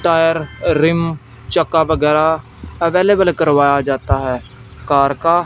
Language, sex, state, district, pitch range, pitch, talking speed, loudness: Hindi, male, Punjab, Fazilka, 130-165 Hz, 150 Hz, 110 wpm, -15 LUFS